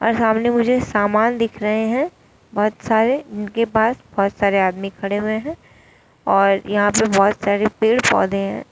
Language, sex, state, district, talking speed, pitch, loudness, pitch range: Hindi, female, Uttar Pradesh, Shamli, 180 wpm, 215 Hz, -18 LUFS, 200-230 Hz